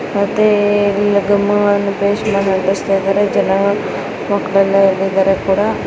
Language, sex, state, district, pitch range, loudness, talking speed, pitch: Kannada, female, Karnataka, Belgaum, 195-205 Hz, -14 LUFS, 110 wpm, 200 Hz